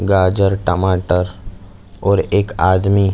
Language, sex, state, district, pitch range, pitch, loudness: Hindi, male, Chhattisgarh, Bilaspur, 90-100 Hz, 95 Hz, -16 LUFS